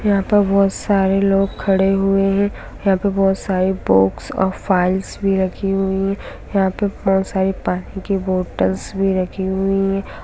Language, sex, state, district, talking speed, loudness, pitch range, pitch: Hindi, female, Bihar, Samastipur, 175 wpm, -18 LUFS, 190-195 Hz, 195 Hz